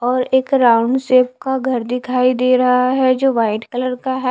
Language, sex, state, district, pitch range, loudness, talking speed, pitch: Hindi, female, Haryana, Charkhi Dadri, 250-260 Hz, -16 LUFS, 210 wpm, 255 Hz